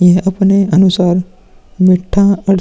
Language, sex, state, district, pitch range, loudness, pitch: Hindi, male, Uttar Pradesh, Muzaffarnagar, 180-195 Hz, -11 LUFS, 185 Hz